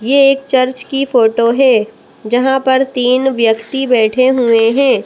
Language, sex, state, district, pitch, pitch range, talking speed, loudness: Hindi, female, Madhya Pradesh, Bhopal, 255 Hz, 230-265 Hz, 155 wpm, -12 LUFS